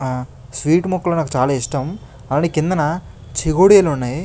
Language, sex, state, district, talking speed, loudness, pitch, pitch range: Telugu, male, Andhra Pradesh, Krishna, 140 wpm, -17 LUFS, 150 Hz, 130-170 Hz